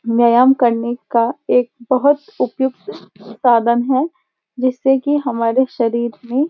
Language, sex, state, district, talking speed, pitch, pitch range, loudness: Hindi, female, Uttarakhand, Uttarkashi, 140 wpm, 250 Hz, 235-270 Hz, -16 LUFS